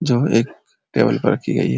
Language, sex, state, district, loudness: Hindi, male, Uttar Pradesh, Ghazipur, -18 LUFS